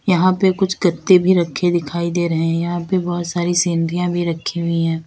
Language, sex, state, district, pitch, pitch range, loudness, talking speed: Hindi, female, Uttar Pradesh, Lalitpur, 175 Hz, 170-180 Hz, -18 LUFS, 225 wpm